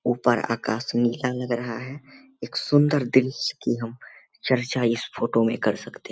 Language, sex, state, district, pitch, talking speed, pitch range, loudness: Hindi, male, Bihar, Begusarai, 120 Hz, 175 wpm, 115-130 Hz, -24 LUFS